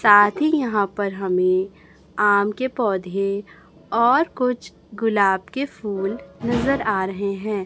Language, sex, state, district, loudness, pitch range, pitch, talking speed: Hindi, male, Chhattisgarh, Raipur, -21 LUFS, 195-235 Hz, 205 Hz, 125 wpm